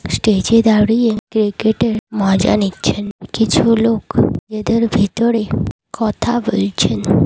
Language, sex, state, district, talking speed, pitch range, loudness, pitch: Bengali, female, Odisha, Malkangiri, 105 wpm, 205-230 Hz, -16 LUFS, 220 Hz